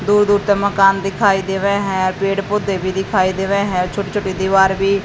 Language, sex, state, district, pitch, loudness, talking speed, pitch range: Hindi, female, Haryana, Jhajjar, 195 Hz, -16 LUFS, 225 wpm, 190-200 Hz